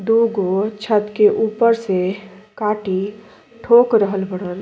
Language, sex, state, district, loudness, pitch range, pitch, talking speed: Bhojpuri, female, Uttar Pradesh, Deoria, -17 LUFS, 195-220 Hz, 210 Hz, 130 wpm